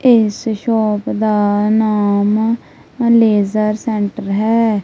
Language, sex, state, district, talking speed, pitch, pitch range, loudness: Punjabi, female, Punjab, Kapurthala, 85 wpm, 215 Hz, 210-225 Hz, -15 LUFS